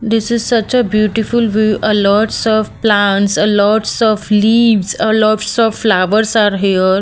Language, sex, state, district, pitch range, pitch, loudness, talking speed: English, female, Maharashtra, Mumbai Suburban, 205-225 Hz, 215 Hz, -12 LUFS, 170 wpm